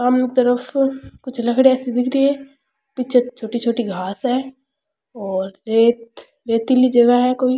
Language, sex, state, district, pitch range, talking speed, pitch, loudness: Rajasthani, female, Rajasthan, Churu, 235-265 Hz, 135 wpm, 250 Hz, -18 LUFS